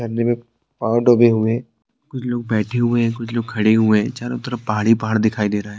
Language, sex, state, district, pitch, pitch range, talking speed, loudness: Hindi, male, Uttarakhand, Tehri Garhwal, 115 Hz, 110-120 Hz, 260 wpm, -18 LUFS